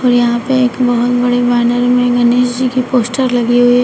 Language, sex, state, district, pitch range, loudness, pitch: Hindi, female, Uttar Pradesh, Shamli, 245-250 Hz, -12 LUFS, 245 Hz